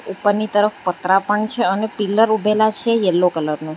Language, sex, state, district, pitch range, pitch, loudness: Gujarati, female, Gujarat, Valsad, 185-215 Hz, 205 Hz, -18 LUFS